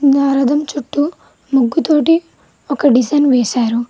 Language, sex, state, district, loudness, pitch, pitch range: Telugu, female, Telangana, Mahabubabad, -14 LUFS, 280 Hz, 255-295 Hz